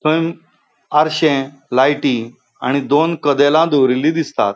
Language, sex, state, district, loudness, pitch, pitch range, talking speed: Konkani, male, Goa, North and South Goa, -16 LUFS, 145 Hz, 135-155 Hz, 105 wpm